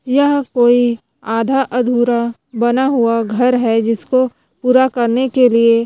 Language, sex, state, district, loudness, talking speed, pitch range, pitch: Hindi, female, Chhattisgarh, Korba, -15 LUFS, 135 wpm, 230-255 Hz, 245 Hz